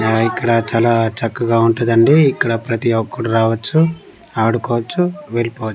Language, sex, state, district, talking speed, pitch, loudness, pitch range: Telugu, male, Andhra Pradesh, Manyam, 115 wpm, 115 Hz, -16 LUFS, 115-120 Hz